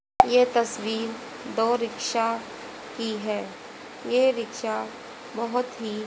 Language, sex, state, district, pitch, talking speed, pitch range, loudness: Hindi, female, Haryana, Rohtak, 230 Hz, 100 wpm, 225-245 Hz, -26 LUFS